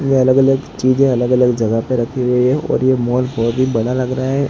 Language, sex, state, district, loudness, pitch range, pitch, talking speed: Hindi, male, Gujarat, Gandhinagar, -15 LUFS, 125-130 Hz, 130 Hz, 265 wpm